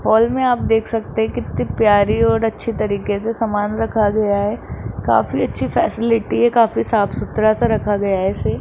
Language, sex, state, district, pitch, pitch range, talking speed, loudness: Hindi, female, Rajasthan, Jaipur, 220 Hz, 205-225 Hz, 190 wpm, -17 LUFS